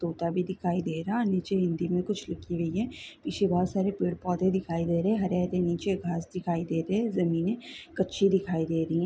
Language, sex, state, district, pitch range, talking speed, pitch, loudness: Hindi, female, Bihar, Saran, 170-195 Hz, 225 wpm, 180 Hz, -29 LUFS